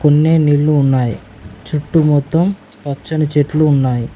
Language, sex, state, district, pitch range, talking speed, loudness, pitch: Telugu, male, Telangana, Mahabubabad, 130-155 Hz, 115 wpm, -14 LUFS, 145 Hz